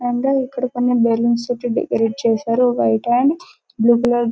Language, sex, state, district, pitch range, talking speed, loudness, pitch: Telugu, male, Telangana, Karimnagar, 230-250 Hz, 125 wpm, -18 LUFS, 240 Hz